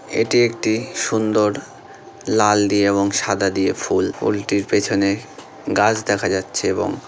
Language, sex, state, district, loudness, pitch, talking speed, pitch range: Bengali, male, West Bengal, North 24 Parganas, -19 LUFS, 105 Hz, 135 wpm, 100-110 Hz